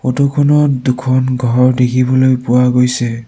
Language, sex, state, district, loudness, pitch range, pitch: Assamese, male, Assam, Sonitpur, -12 LUFS, 125-130 Hz, 125 Hz